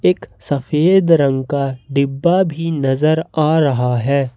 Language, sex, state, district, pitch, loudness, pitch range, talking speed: Hindi, male, Jharkhand, Ranchi, 140 Hz, -16 LUFS, 130-160 Hz, 135 wpm